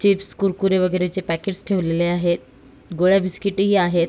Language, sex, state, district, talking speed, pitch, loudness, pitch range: Marathi, female, Maharashtra, Sindhudurg, 145 wpm, 185 Hz, -20 LUFS, 170-195 Hz